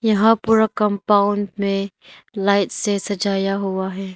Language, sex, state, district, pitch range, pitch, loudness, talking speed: Hindi, female, Arunachal Pradesh, Lower Dibang Valley, 195-210 Hz, 200 Hz, -19 LUFS, 130 wpm